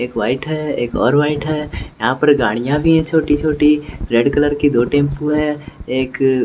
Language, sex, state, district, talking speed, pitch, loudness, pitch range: Hindi, male, Bihar, West Champaran, 185 wpm, 145 Hz, -16 LUFS, 130-150 Hz